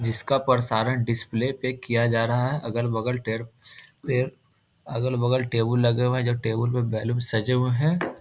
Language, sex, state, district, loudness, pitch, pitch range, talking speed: Hindi, male, Bihar, Muzaffarpur, -25 LUFS, 120 Hz, 115-130 Hz, 155 wpm